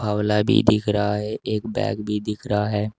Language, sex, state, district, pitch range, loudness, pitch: Hindi, male, Uttar Pradesh, Shamli, 105-110 Hz, -22 LUFS, 105 Hz